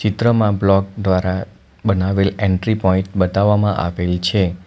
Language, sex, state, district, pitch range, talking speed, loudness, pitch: Gujarati, male, Gujarat, Valsad, 95-105 Hz, 115 wpm, -17 LUFS, 95 Hz